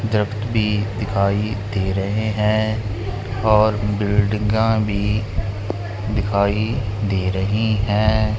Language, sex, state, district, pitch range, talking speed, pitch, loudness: Hindi, male, Punjab, Kapurthala, 100-110 Hz, 85 wpm, 105 Hz, -20 LUFS